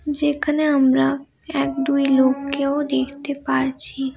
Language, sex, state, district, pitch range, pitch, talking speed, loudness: Bengali, female, West Bengal, Malda, 270-290 Hz, 280 Hz, 115 wpm, -20 LUFS